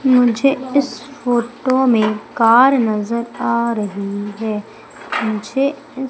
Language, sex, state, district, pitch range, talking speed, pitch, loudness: Hindi, female, Madhya Pradesh, Umaria, 215-265 Hz, 100 wpm, 240 Hz, -17 LUFS